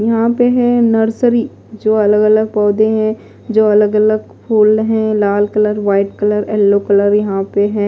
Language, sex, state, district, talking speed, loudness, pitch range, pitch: Hindi, female, Maharashtra, Mumbai Suburban, 160 wpm, -13 LUFS, 205-220 Hz, 215 Hz